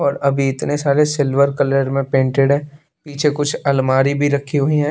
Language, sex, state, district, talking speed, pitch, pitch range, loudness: Hindi, male, Bihar, West Champaran, 195 wpm, 140 Hz, 135-145 Hz, -17 LUFS